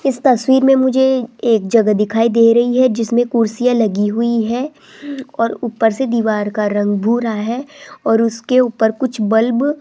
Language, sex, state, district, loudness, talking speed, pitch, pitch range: Hindi, female, Rajasthan, Jaipur, -15 LUFS, 175 wpm, 235 Hz, 225-260 Hz